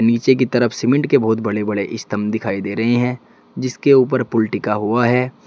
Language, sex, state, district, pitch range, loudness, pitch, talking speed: Hindi, male, Uttar Pradesh, Saharanpur, 105-125 Hz, -17 LUFS, 115 Hz, 210 wpm